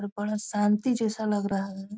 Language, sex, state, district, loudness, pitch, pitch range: Hindi, female, Bihar, Muzaffarpur, -27 LUFS, 210 Hz, 205-215 Hz